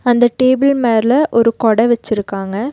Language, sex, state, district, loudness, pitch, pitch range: Tamil, female, Tamil Nadu, Nilgiris, -14 LUFS, 235 Hz, 220-255 Hz